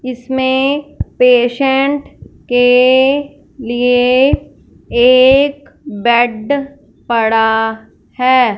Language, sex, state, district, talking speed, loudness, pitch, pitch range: Hindi, female, Punjab, Fazilka, 55 wpm, -12 LUFS, 255 Hz, 240-275 Hz